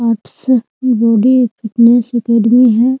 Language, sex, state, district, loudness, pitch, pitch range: Hindi, female, Bihar, Muzaffarpur, -12 LUFS, 235 Hz, 230-250 Hz